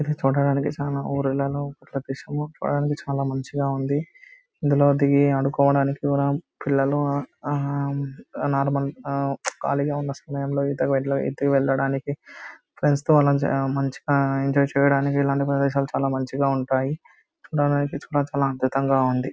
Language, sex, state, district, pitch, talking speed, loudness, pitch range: Telugu, male, Andhra Pradesh, Anantapur, 140 Hz, 105 wpm, -23 LUFS, 135-145 Hz